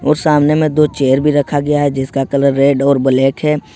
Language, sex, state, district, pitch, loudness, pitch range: Hindi, male, Jharkhand, Ranchi, 145 Hz, -13 LUFS, 135-150 Hz